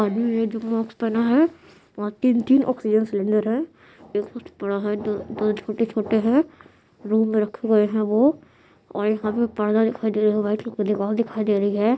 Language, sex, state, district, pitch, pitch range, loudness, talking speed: Hindi, female, Bihar, Madhepura, 220 Hz, 210-230 Hz, -22 LUFS, 200 wpm